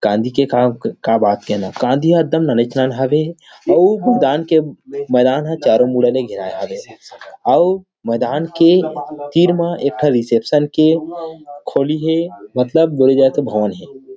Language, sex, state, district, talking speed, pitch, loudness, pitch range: Chhattisgarhi, male, Chhattisgarh, Rajnandgaon, 175 wpm, 145 Hz, -15 LUFS, 125-165 Hz